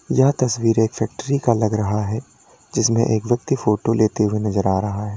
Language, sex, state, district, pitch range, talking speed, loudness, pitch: Hindi, male, Uttar Pradesh, Lalitpur, 105-120 Hz, 210 wpm, -20 LUFS, 110 Hz